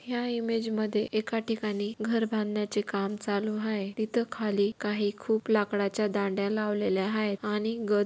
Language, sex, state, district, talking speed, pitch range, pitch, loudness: Marathi, female, Maharashtra, Dhule, 150 wpm, 205-220 Hz, 215 Hz, -30 LUFS